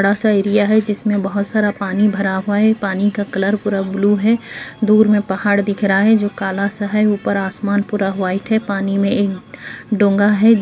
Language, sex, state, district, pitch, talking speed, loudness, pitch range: Hindi, female, Bihar, Madhepura, 205 Hz, 190 wpm, -16 LUFS, 195-210 Hz